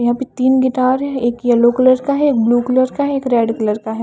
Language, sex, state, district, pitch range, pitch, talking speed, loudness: Hindi, female, Haryana, Charkhi Dadri, 240-260 Hz, 255 Hz, 265 wpm, -15 LUFS